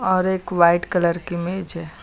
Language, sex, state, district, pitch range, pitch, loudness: Hindi, female, Uttar Pradesh, Lucknow, 170-185 Hz, 175 Hz, -20 LUFS